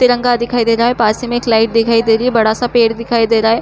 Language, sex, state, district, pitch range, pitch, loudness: Hindi, female, Chhattisgarh, Korba, 225-240 Hz, 230 Hz, -13 LUFS